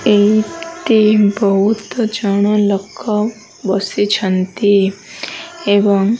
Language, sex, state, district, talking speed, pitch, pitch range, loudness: Odia, female, Odisha, Malkangiri, 70 wpm, 210 Hz, 200-220 Hz, -15 LUFS